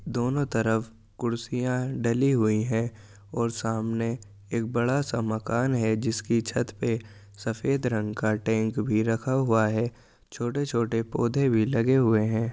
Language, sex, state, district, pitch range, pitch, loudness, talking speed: Hindi, male, Uttar Pradesh, Jyotiba Phule Nagar, 110-120 Hz, 115 Hz, -27 LUFS, 150 wpm